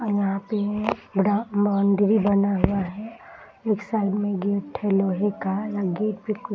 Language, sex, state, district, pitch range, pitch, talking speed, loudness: Hindi, female, Bihar, Muzaffarpur, 200-210 Hz, 205 Hz, 185 wpm, -24 LUFS